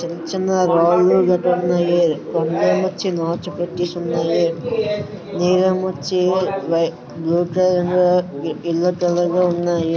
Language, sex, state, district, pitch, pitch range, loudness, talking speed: Telugu, male, Andhra Pradesh, Srikakulam, 175 Hz, 170-185 Hz, -18 LUFS, 100 wpm